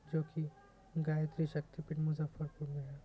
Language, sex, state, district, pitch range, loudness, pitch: Hindi, male, Bihar, Muzaffarpur, 150-160 Hz, -40 LUFS, 155 Hz